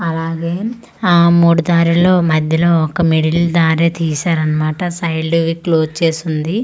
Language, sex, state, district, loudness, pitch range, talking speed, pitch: Telugu, female, Andhra Pradesh, Manyam, -14 LUFS, 160-170 Hz, 110 wpm, 165 Hz